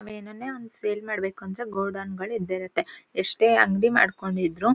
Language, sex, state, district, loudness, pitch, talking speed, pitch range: Kannada, female, Karnataka, Shimoga, -25 LUFS, 210 Hz, 175 wpm, 190-230 Hz